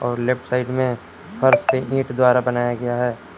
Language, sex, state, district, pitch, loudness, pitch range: Hindi, male, Jharkhand, Palamu, 125 Hz, -20 LUFS, 120-125 Hz